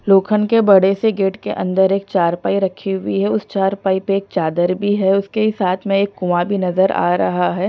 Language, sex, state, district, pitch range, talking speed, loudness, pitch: Hindi, female, Punjab, Pathankot, 185-200 Hz, 235 wpm, -17 LUFS, 195 Hz